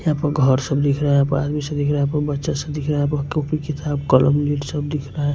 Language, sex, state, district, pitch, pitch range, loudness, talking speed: Hindi, male, Punjab, Kapurthala, 145 Hz, 140-150 Hz, -20 LUFS, 270 wpm